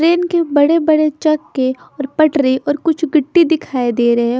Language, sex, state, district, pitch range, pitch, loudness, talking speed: Hindi, female, Bihar, Katihar, 260-320 Hz, 300 Hz, -15 LUFS, 175 wpm